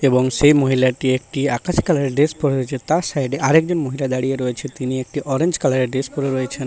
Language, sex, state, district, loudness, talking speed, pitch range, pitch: Bengali, male, West Bengal, Paschim Medinipur, -19 LUFS, 250 wpm, 130-145 Hz, 135 Hz